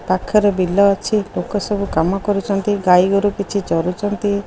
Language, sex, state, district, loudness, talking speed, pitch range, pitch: Odia, female, Odisha, Khordha, -17 LUFS, 135 wpm, 185-205 Hz, 200 Hz